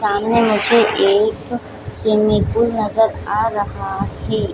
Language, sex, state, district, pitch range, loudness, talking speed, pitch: Hindi, female, Chhattisgarh, Bilaspur, 210-230 Hz, -17 LUFS, 120 wpm, 215 Hz